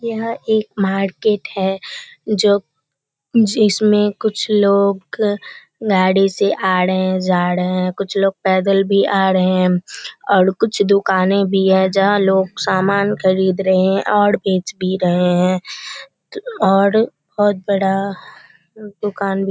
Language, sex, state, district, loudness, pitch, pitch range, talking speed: Hindi, female, Bihar, Kishanganj, -16 LUFS, 195 Hz, 185-210 Hz, 135 wpm